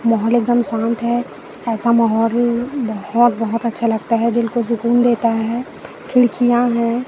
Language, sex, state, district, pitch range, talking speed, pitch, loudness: Hindi, female, Chhattisgarh, Raipur, 230-240 Hz, 160 wpm, 235 Hz, -17 LUFS